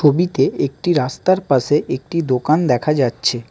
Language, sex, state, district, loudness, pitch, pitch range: Bengali, male, West Bengal, Alipurduar, -17 LUFS, 145 Hz, 130-165 Hz